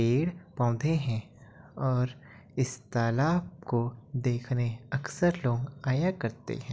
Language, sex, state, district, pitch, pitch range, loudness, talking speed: Hindi, male, Uttar Pradesh, Etah, 130 Hz, 120-145 Hz, -30 LUFS, 115 wpm